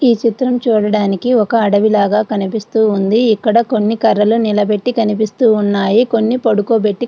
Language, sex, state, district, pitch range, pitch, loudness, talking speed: Telugu, female, Andhra Pradesh, Srikakulam, 210-230 Hz, 220 Hz, -13 LUFS, 125 wpm